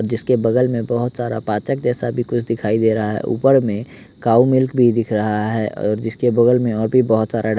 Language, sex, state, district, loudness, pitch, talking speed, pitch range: Hindi, male, Bihar, West Champaran, -18 LUFS, 115 Hz, 245 wpm, 110-120 Hz